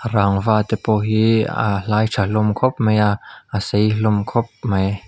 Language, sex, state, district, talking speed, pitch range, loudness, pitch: Mizo, male, Mizoram, Aizawl, 190 wpm, 100-110 Hz, -18 LUFS, 105 Hz